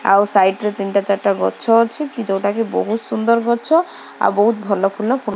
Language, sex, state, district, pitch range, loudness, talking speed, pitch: Odia, female, Odisha, Khordha, 200-230 Hz, -17 LUFS, 200 wpm, 210 Hz